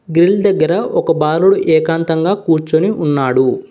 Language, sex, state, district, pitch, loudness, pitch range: Telugu, male, Telangana, Hyderabad, 165 Hz, -13 LUFS, 155-185 Hz